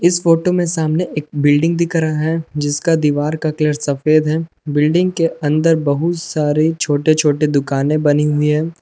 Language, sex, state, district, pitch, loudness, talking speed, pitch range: Hindi, male, Jharkhand, Palamu, 155 Hz, -16 LUFS, 175 wpm, 150-165 Hz